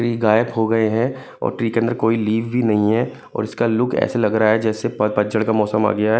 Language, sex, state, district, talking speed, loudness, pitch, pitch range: Hindi, male, Punjab, Kapurthala, 280 wpm, -19 LUFS, 110 Hz, 110-115 Hz